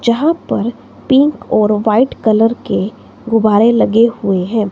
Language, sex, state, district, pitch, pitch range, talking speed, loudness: Hindi, female, Himachal Pradesh, Shimla, 225 Hz, 215-240 Hz, 140 wpm, -13 LUFS